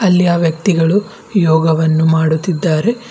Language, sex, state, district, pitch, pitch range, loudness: Kannada, female, Karnataka, Bidar, 170 Hz, 160-195 Hz, -14 LUFS